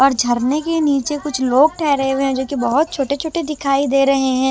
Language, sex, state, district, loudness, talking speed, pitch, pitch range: Hindi, female, Chhattisgarh, Raipur, -17 LUFS, 240 wpm, 275 Hz, 270-295 Hz